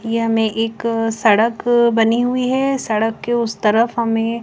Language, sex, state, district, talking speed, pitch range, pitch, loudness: Hindi, female, Chandigarh, Chandigarh, 165 wpm, 225-235 Hz, 230 Hz, -17 LUFS